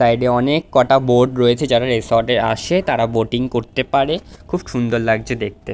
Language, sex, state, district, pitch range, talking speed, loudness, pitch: Bengali, male, West Bengal, Dakshin Dinajpur, 115-130 Hz, 210 wpm, -17 LUFS, 120 Hz